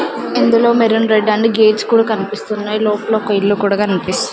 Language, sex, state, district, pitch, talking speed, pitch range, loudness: Telugu, female, Andhra Pradesh, Sri Satya Sai, 215 Hz, 180 wpm, 205-225 Hz, -14 LUFS